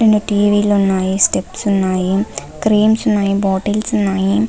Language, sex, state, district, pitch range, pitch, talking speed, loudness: Telugu, female, Andhra Pradesh, Visakhapatnam, 195-215 Hz, 205 Hz, 135 wpm, -15 LUFS